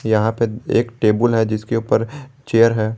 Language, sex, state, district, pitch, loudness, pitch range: Hindi, male, Jharkhand, Garhwa, 115 Hz, -18 LUFS, 110-115 Hz